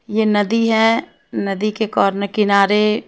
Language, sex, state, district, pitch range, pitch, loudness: Hindi, female, Himachal Pradesh, Shimla, 205-220 Hz, 215 Hz, -17 LUFS